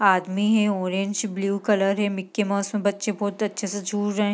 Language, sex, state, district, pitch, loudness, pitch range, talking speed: Hindi, female, Bihar, East Champaran, 205 Hz, -24 LUFS, 195-210 Hz, 220 wpm